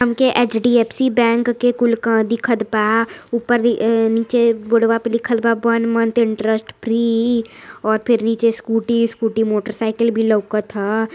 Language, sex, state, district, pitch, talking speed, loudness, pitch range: Hindi, female, Uttar Pradesh, Varanasi, 230 Hz, 145 wpm, -17 LUFS, 225-235 Hz